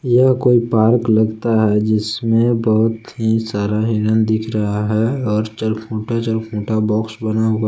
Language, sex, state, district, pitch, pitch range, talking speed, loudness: Hindi, male, Jharkhand, Palamu, 110 Hz, 110-115 Hz, 150 wpm, -17 LUFS